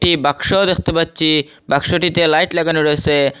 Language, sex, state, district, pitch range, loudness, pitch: Bengali, male, Assam, Hailakandi, 150-170 Hz, -15 LUFS, 155 Hz